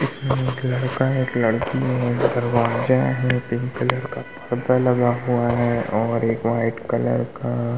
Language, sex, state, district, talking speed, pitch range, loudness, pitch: Hindi, male, Uttar Pradesh, Muzaffarnagar, 175 wpm, 115-130 Hz, -21 LUFS, 120 Hz